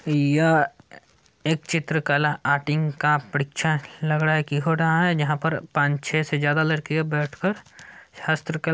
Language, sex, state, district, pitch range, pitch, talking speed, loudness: Hindi, male, Bihar, Saran, 145-160 Hz, 155 Hz, 160 wpm, -23 LUFS